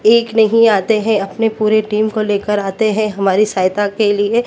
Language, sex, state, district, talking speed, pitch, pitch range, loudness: Hindi, female, Maharashtra, Mumbai Suburban, 200 wpm, 215 Hz, 205-220 Hz, -14 LUFS